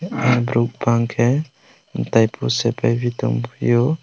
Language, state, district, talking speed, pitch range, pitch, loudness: Kokborok, Tripura, West Tripura, 105 wpm, 115-125 Hz, 120 Hz, -19 LUFS